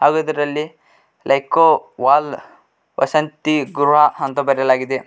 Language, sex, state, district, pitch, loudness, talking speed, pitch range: Kannada, male, Karnataka, Koppal, 145 Hz, -17 LUFS, 95 wpm, 135-155 Hz